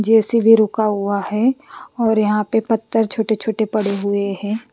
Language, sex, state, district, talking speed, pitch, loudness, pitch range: Hindi, female, Bihar, West Champaran, 175 wpm, 220 Hz, -18 LUFS, 210-225 Hz